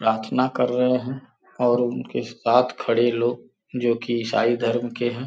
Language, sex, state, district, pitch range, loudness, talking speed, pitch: Hindi, male, Uttar Pradesh, Gorakhpur, 120-125 Hz, -22 LUFS, 170 wpm, 120 Hz